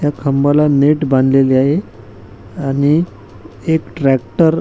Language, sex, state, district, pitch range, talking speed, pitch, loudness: Marathi, male, Maharashtra, Washim, 130-150 Hz, 115 wpm, 140 Hz, -14 LUFS